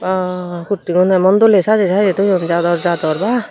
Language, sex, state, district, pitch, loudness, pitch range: Chakma, female, Tripura, Unakoti, 185 Hz, -14 LUFS, 175-200 Hz